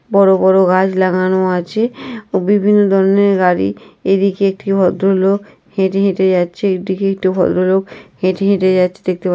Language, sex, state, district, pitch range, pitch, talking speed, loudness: Bengali, female, West Bengal, North 24 Parganas, 185-195 Hz, 190 Hz, 140 wpm, -14 LUFS